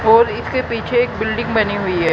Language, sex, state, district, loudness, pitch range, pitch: Hindi, female, Haryana, Charkhi Dadri, -17 LUFS, 205-230 Hz, 220 Hz